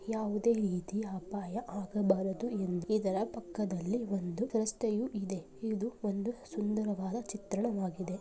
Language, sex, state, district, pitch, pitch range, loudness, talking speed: Kannada, female, Karnataka, Bellary, 210 Hz, 190-220 Hz, -35 LUFS, 95 wpm